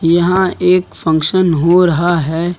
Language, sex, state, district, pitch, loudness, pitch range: Hindi, male, Uttar Pradesh, Lucknow, 175 Hz, -13 LUFS, 165-180 Hz